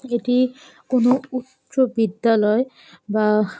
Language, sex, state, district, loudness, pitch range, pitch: Bengali, female, West Bengal, Jalpaiguri, -20 LUFS, 215-255 Hz, 240 Hz